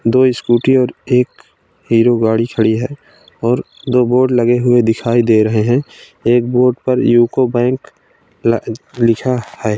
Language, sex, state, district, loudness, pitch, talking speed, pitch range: Hindi, male, Uttar Pradesh, Gorakhpur, -14 LUFS, 120 Hz, 165 wpm, 115-125 Hz